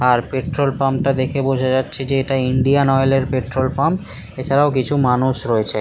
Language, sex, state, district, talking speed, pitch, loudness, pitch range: Bengali, male, West Bengal, Kolkata, 185 wpm, 135 Hz, -18 LUFS, 130-135 Hz